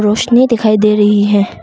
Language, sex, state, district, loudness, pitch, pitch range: Hindi, female, Arunachal Pradesh, Longding, -11 LUFS, 210 Hz, 210-230 Hz